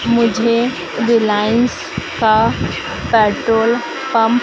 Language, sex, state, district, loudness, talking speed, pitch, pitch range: Hindi, female, Madhya Pradesh, Dhar, -15 LUFS, 80 wpm, 230 Hz, 220-235 Hz